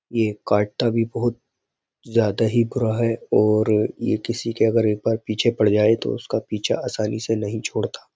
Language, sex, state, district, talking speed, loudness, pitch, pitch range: Hindi, male, Uttar Pradesh, Jyotiba Phule Nagar, 185 wpm, -21 LUFS, 110 Hz, 110-115 Hz